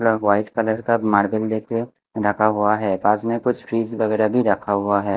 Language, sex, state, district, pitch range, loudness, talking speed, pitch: Hindi, male, Maharashtra, Mumbai Suburban, 105-115 Hz, -20 LUFS, 195 wpm, 110 Hz